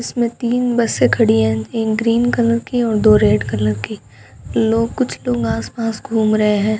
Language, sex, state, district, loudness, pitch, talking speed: Hindi, female, Rajasthan, Bikaner, -17 LUFS, 210 Hz, 185 wpm